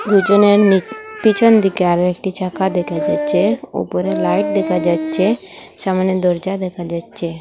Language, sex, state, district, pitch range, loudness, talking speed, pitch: Bengali, female, Assam, Hailakandi, 170-200 Hz, -16 LUFS, 130 wpm, 185 Hz